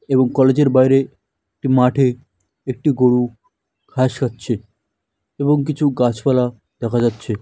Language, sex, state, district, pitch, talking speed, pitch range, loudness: Bengali, male, West Bengal, Dakshin Dinajpur, 125 Hz, 120 wpm, 115-135 Hz, -17 LUFS